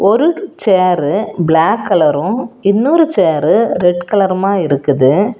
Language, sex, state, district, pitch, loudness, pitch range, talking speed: Tamil, female, Tamil Nadu, Kanyakumari, 195 Hz, -13 LUFS, 170-235 Hz, 100 wpm